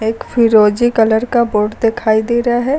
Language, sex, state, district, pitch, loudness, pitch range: Hindi, female, Uttar Pradesh, Lucknow, 230 Hz, -13 LUFS, 220-240 Hz